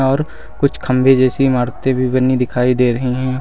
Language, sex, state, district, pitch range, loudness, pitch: Hindi, male, Uttar Pradesh, Lucknow, 125-135 Hz, -15 LUFS, 130 Hz